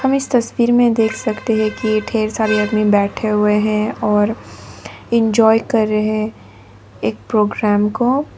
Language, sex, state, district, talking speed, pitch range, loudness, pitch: Hindi, female, Nagaland, Dimapur, 155 wpm, 210-225 Hz, -16 LUFS, 215 Hz